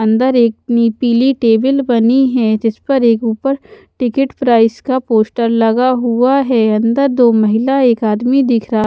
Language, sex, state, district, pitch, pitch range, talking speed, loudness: Hindi, female, Haryana, Charkhi Dadri, 240 Hz, 225-260 Hz, 170 wpm, -13 LUFS